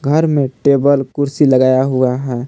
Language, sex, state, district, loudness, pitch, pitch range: Hindi, male, Jharkhand, Palamu, -14 LUFS, 135 Hz, 130-145 Hz